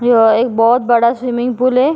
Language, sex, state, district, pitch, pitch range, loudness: Hindi, female, Goa, North and South Goa, 240 Hz, 235-250 Hz, -13 LUFS